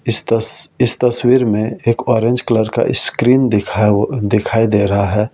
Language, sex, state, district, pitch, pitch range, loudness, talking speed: Hindi, male, Delhi, New Delhi, 115 Hz, 105-125 Hz, -15 LUFS, 180 wpm